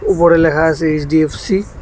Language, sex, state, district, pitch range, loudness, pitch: Bengali, male, Tripura, West Tripura, 155-170 Hz, -13 LUFS, 160 Hz